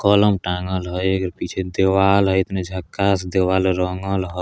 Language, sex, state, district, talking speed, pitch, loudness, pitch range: Bajjika, male, Bihar, Vaishali, 150 wpm, 95 Hz, -20 LUFS, 90-95 Hz